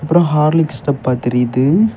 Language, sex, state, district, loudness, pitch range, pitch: Tamil, male, Tamil Nadu, Kanyakumari, -15 LUFS, 130-165 Hz, 150 Hz